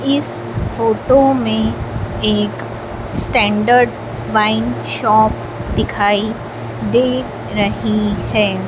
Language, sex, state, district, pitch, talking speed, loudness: Hindi, female, Madhya Pradesh, Dhar, 205 Hz, 75 wpm, -16 LUFS